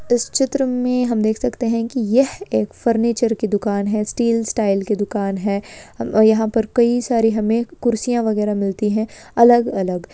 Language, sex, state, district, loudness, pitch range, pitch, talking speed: Hindi, female, West Bengal, Purulia, -18 LUFS, 210-240 Hz, 225 Hz, 170 wpm